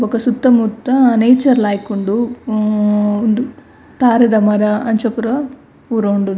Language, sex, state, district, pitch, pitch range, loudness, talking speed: Tulu, female, Karnataka, Dakshina Kannada, 230 Hz, 210-250 Hz, -14 LUFS, 130 wpm